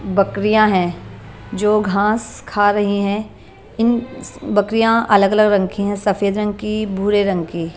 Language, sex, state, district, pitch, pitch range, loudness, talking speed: Hindi, female, Punjab, Pathankot, 205 Hz, 195-215 Hz, -17 LUFS, 145 wpm